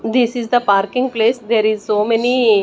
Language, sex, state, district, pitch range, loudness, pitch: English, female, Chandigarh, Chandigarh, 215-245 Hz, -16 LUFS, 225 Hz